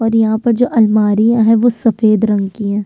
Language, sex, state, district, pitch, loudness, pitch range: Hindi, female, Chhattisgarh, Sukma, 220 Hz, -13 LUFS, 210-230 Hz